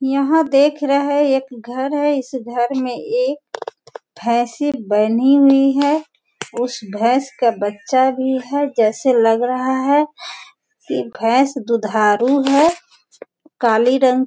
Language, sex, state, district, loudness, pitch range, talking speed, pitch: Hindi, female, Bihar, Sitamarhi, -17 LUFS, 240-290 Hz, 135 wpm, 265 Hz